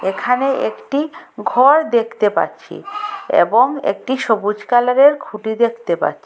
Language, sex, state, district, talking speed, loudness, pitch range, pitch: Bengali, female, Assam, Hailakandi, 115 wpm, -16 LUFS, 220-285 Hz, 250 Hz